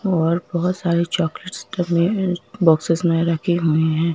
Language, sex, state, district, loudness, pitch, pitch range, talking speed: Hindi, female, Madhya Pradesh, Bhopal, -20 LUFS, 170 Hz, 165-180 Hz, 145 wpm